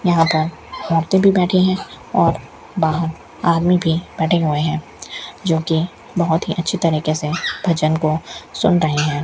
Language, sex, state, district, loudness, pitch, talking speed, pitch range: Hindi, female, Rajasthan, Bikaner, -18 LUFS, 165 Hz, 155 wpm, 155-180 Hz